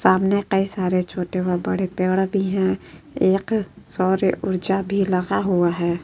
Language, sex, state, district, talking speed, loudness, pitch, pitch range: Hindi, female, Uttar Pradesh, Etah, 160 wpm, -21 LUFS, 190 Hz, 185-195 Hz